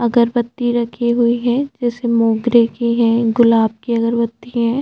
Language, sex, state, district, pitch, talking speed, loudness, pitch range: Hindi, female, Chhattisgarh, Jashpur, 235 Hz, 150 wpm, -16 LUFS, 230-240 Hz